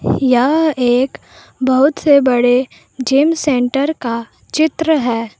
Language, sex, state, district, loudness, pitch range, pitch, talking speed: Hindi, female, Jharkhand, Palamu, -15 LUFS, 245-300 Hz, 265 Hz, 110 wpm